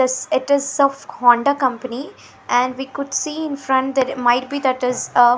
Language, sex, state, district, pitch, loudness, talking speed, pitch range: English, female, Punjab, Fazilka, 265 Hz, -19 LUFS, 200 wpm, 250-280 Hz